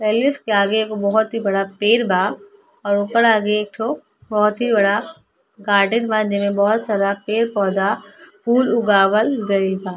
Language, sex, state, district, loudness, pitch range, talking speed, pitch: Bhojpuri, female, Bihar, East Champaran, -18 LUFS, 200-225 Hz, 170 wpm, 210 Hz